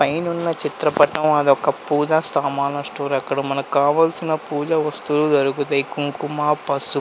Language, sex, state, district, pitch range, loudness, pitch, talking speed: Telugu, male, Andhra Pradesh, Visakhapatnam, 140-155 Hz, -20 LUFS, 145 Hz, 130 wpm